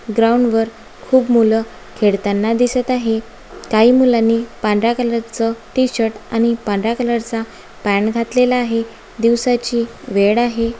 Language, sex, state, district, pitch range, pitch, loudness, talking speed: Marathi, female, Maharashtra, Aurangabad, 225-240 Hz, 230 Hz, -16 LUFS, 110 wpm